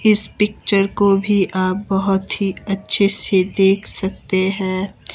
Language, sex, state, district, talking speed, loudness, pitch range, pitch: Hindi, female, Himachal Pradesh, Shimla, 140 wpm, -16 LUFS, 190-200 Hz, 195 Hz